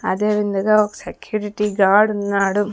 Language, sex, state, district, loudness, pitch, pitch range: Telugu, female, Andhra Pradesh, Sri Satya Sai, -18 LUFS, 205 Hz, 200-210 Hz